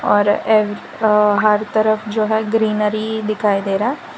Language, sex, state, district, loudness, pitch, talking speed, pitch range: Hindi, female, Gujarat, Valsad, -17 LUFS, 215 Hz, 160 wpm, 210-220 Hz